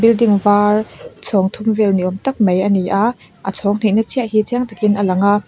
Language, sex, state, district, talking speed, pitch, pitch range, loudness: Mizo, female, Mizoram, Aizawl, 240 wpm, 210 Hz, 195-225 Hz, -16 LUFS